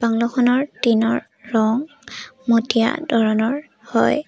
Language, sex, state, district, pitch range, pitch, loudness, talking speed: Assamese, female, Assam, Sonitpur, 225-265 Hz, 235 Hz, -19 LUFS, 100 wpm